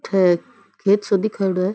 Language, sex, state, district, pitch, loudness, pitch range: Rajasthani, female, Rajasthan, Churu, 195 Hz, -20 LUFS, 185-200 Hz